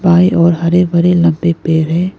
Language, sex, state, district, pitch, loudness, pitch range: Hindi, female, Arunachal Pradesh, Lower Dibang Valley, 170 Hz, -12 LUFS, 165-180 Hz